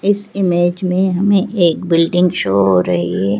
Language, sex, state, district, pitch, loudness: Hindi, female, Madhya Pradesh, Bhopal, 175 Hz, -15 LUFS